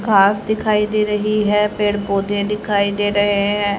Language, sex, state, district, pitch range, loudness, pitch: Hindi, male, Haryana, Charkhi Dadri, 205-210 Hz, -17 LUFS, 205 Hz